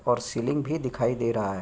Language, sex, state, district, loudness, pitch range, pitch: Hindi, male, Uttar Pradesh, Gorakhpur, -27 LUFS, 115-130 Hz, 120 Hz